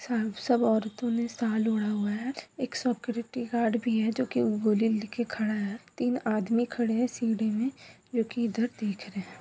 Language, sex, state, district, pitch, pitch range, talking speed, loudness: Hindi, female, Bihar, Bhagalpur, 230 Hz, 215-240 Hz, 190 wpm, -29 LUFS